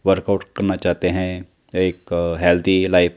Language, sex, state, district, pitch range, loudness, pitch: Hindi, male, Chandigarh, Chandigarh, 90-95 Hz, -19 LUFS, 90 Hz